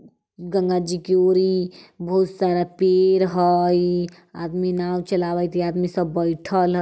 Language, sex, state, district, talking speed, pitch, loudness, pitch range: Bajjika, female, Bihar, Vaishali, 140 wpm, 180 Hz, -21 LUFS, 175-185 Hz